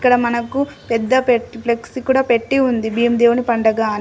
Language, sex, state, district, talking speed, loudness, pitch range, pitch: Telugu, female, Telangana, Adilabad, 165 wpm, -17 LUFS, 230-255 Hz, 235 Hz